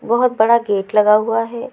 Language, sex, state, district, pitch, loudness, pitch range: Hindi, female, Chhattisgarh, Raipur, 225 Hz, -15 LUFS, 210-235 Hz